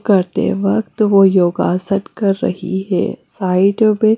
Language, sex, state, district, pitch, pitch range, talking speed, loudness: Hindi, female, Punjab, Fazilka, 195 Hz, 185-210 Hz, 130 wpm, -15 LUFS